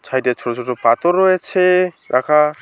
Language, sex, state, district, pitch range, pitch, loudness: Bengali, male, West Bengal, Alipurduar, 125-180 Hz, 150 Hz, -16 LUFS